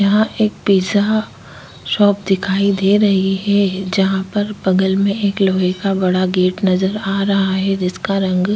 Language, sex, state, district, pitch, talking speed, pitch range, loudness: Hindi, female, Uttar Pradesh, Jyotiba Phule Nagar, 195 Hz, 170 wpm, 190-200 Hz, -16 LUFS